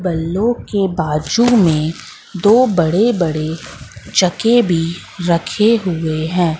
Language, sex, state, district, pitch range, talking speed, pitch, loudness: Hindi, female, Madhya Pradesh, Katni, 160-210 Hz, 110 wpm, 175 Hz, -15 LUFS